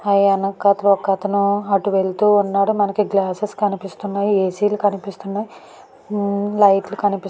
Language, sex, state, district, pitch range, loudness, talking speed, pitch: Telugu, female, Andhra Pradesh, Anantapur, 195-205 Hz, -18 LUFS, 115 wpm, 200 Hz